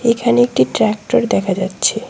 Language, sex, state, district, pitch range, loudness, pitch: Bengali, female, West Bengal, Cooch Behar, 200-240 Hz, -16 LUFS, 225 Hz